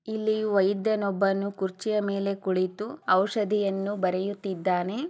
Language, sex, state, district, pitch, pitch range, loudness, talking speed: Kannada, female, Karnataka, Chamarajanagar, 200 Hz, 190-210 Hz, -27 LUFS, 105 wpm